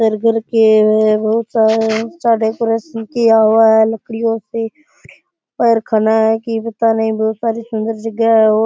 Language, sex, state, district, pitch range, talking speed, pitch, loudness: Rajasthani, male, Rajasthan, Churu, 220-230 Hz, 50 wpm, 225 Hz, -14 LUFS